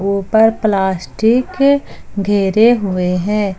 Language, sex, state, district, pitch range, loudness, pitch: Hindi, female, Jharkhand, Ranchi, 195-225 Hz, -14 LUFS, 205 Hz